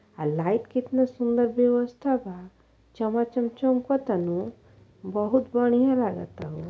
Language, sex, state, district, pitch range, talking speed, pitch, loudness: Bhojpuri, female, Uttar Pradesh, Ghazipur, 185-250 Hz, 125 wpm, 235 Hz, -25 LUFS